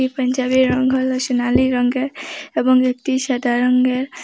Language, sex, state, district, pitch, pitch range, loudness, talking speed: Bengali, female, Assam, Hailakandi, 255 Hz, 250-260 Hz, -18 LUFS, 125 wpm